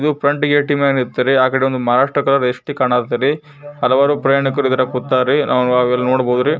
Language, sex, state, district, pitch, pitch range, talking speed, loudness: Kannada, male, Karnataka, Bijapur, 135 Hz, 125-145 Hz, 175 wpm, -15 LUFS